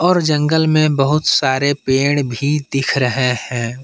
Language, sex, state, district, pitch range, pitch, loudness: Hindi, male, Jharkhand, Palamu, 130-150 Hz, 140 Hz, -16 LUFS